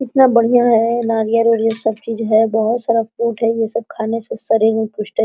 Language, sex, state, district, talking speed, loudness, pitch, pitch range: Hindi, female, Bihar, Araria, 215 wpm, -16 LUFS, 225 Hz, 220-235 Hz